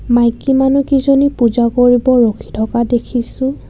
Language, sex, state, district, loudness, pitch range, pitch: Assamese, female, Assam, Kamrup Metropolitan, -13 LUFS, 235-270 Hz, 245 Hz